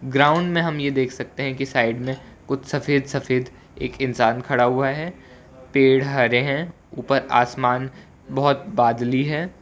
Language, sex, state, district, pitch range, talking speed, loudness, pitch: Hindi, male, Gujarat, Valsad, 125-140 Hz, 160 wpm, -21 LUFS, 135 Hz